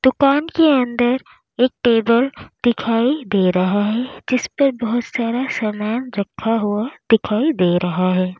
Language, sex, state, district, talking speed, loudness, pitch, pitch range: Hindi, female, Uttar Pradesh, Lalitpur, 145 wpm, -18 LUFS, 235 Hz, 210-260 Hz